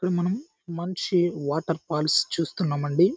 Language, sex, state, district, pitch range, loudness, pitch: Telugu, male, Andhra Pradesh, Chittoor, 155-180 Hz, -26 LUFS, 170 Hz